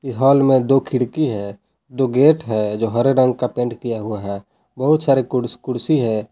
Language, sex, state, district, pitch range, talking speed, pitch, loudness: Hindi, male, Jharkhand, Palamu, 115-135 Hz, 200 wpm, 125 Hz, -18 LUFS